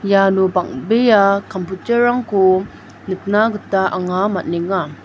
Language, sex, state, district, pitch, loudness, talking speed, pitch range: Garo, female, Meghalaya, North Garo Hills, 195 Hz, -16 LUFS, 95 wpm, 185-210 Hz